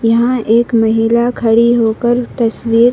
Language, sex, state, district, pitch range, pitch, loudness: Hindi, female, Madhya Pradesh, Dhar, 225-240 Hz, 235 Hz, -12 LUFS